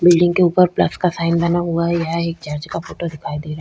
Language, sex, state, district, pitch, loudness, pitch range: Hindi, female, Uttar Pradesh, Jyotiba Phule Nagar, 170 Hz, -18 LUFS, 165-175 Hz